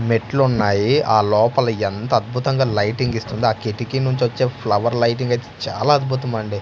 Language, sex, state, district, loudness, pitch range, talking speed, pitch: Telugu, male, Andhra Pradesh, Manyam, -19 LUFS, 110-130 Hz, 165 wpm, 120 Hz